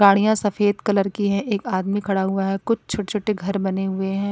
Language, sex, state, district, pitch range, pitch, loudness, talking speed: Hindi, female, Punjab, Kapurthala, 195-210 Hz, 200 Hz, -22 LUFS, 220 wpm